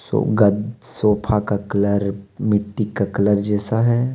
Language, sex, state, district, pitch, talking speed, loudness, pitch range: Hindi, male, Jharkhand, Deoghar, 105 Hz, 145 wpm, -20 LUFS, 100-110 Hz